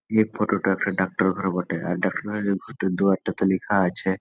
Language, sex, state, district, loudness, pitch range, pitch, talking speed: Bengali, male, West Bengal, Malda, -24 LUFS, 95-100 Hz, 95 Hz, 185 wpm